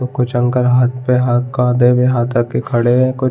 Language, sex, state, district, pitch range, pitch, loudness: Hindi, male, Chhattisgarh, Balrampur, 120-125 Hz, 125 Hz, -14 LUFS